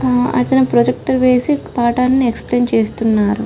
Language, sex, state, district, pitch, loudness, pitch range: Telugu, female, Telangana, Karimnagar, 245 Hz, -15 LUFS, 235-255 Hz